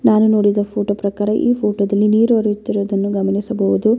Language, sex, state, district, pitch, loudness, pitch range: Kannada, female, Karnataka, Bellary, 205 Hz, -16 LUFS, 200-215 Hz